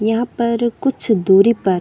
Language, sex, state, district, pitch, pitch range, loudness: Hindi, female, Chhattisgarh, Bilaspur, 230 Hz, 200-235 Hz, -16 LUFS